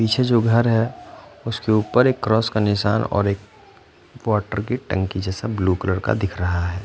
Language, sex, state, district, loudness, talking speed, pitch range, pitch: Hindi, male, Punjab, Fazilka, -21 LUFS, 195 wpm, 95-115 Hz, 105 Hz